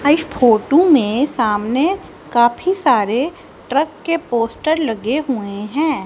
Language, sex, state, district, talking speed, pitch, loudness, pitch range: Hindi, female, Haryana, Charkhi Dadri, 120 wpm, 275 Hz, -17 LUFS, 230-315 Hz